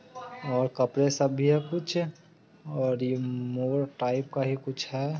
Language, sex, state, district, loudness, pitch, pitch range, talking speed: Hindi, male, Bihar, Sitamarhi, -29 LUFS, 140 Hz, 130-155 Hz, 150 wpm